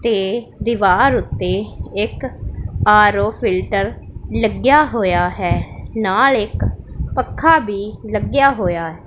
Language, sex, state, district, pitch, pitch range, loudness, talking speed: Punjabi, female, Punjab, Pathankot, 210 Hz, 195-265 Hz, -17 LUFS, 105 wpm